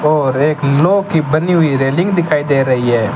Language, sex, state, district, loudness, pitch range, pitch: Hindi, male, Rajasthan, Bikaner, -13 LUFS, 135-165 Hz, 150 Hz